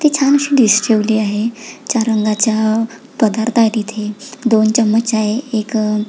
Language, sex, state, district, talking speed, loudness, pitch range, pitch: Marathi, female, Maharashtra, Pune, 130 wpm, -15 LUFS, 215-230 Hz, 220 Hz